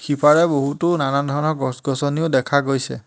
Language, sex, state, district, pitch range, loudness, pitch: Assamese, male, Assam, Hailakandi, 135-150 Hz, -19 LUFS, 145 Hz